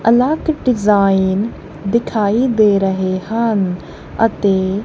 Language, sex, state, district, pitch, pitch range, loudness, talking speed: Punjabi, female, Punjab, Kapurthala, 210 Hz, 195-230 Hz, -15 LUFS, 85 wpm